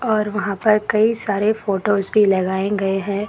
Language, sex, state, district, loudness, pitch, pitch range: Hindi, female, Karnataka, Koppal, -18 LUFS, 205 Hz, 195-215 Hz